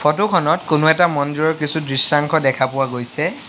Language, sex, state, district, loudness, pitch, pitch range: Assamese, male, Assam, Sonitpur, -17 LUFS, 150 Hz, 135-160 Hz